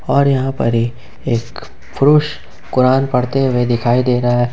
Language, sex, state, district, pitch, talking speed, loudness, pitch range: Hindi, male, Jharkhand, Ranchi, 125 Hz, 160 wpm, -15 LUFS, 120-135 Hz